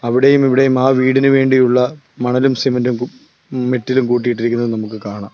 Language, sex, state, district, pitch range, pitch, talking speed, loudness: Malayalam, male, Kerala, Kollam, 120-130 Hz, 125 Hz, 125 wpm, -15 LUFS